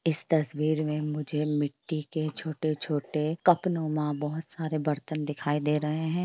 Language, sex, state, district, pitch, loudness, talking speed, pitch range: Hindi, female, Bihar, Jamui, 155 Hz, -29 LUFS, 145 wpm, 150-160 Hz